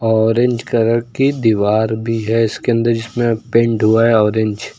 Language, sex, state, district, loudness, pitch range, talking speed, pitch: Hindi, male, Uttar Pradesh, Lucknow, -15 LUFS, 110-115 Hz, 175 wpm, 115 Hz